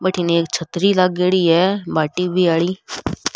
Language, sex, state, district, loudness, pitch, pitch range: Rajasthani, female, Rajasthan, Nagaur, -18 LUFS, 180 Hz, 170-185 Hz